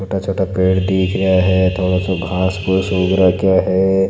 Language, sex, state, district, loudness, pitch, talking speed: Marwari, male, Rajasthan, Nagaur, -16 LUFS, 95 Hz, 190 wpm